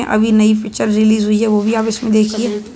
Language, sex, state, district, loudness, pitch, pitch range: Hindi, male, Uttar Pradesh, Budaun, -14 LUFS, 215 Hz, 215-225 Hz